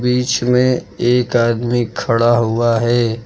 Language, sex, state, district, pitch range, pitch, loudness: Hindi, male, Uttar Pradesh, Lucknow, 115-125 Hz, 120 Hz, -15 LUFS